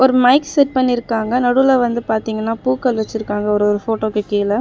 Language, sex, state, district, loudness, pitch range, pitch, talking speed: Tamil, female, Tamil Nadu, Chennai, -16 LUFS, 215-255 Hz, 230 Hz, 170 wpm